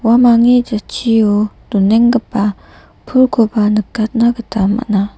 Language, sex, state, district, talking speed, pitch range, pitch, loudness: Garo, female, Meghalaya, West Garo Hills, 80 wpm, 210-240 Hz, 225 Hz, -13 LUFS